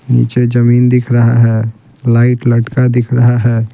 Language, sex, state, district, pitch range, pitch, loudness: Hindi, male, Bihar, Patna, 115-125 Hz, 120 Hz, -11 LUFS